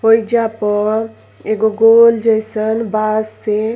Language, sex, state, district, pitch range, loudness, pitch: Bhojpuri, female, Uttar Pradesh, Gorakhpur, 215-225 Hz, -14 LUFS, 220 Hz